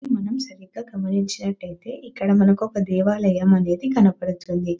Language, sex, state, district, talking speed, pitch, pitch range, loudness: Telugu, female, Telangana, Nalgonda, 100 wpm, 195 Hz, 185-220 Hz, -21 LUFS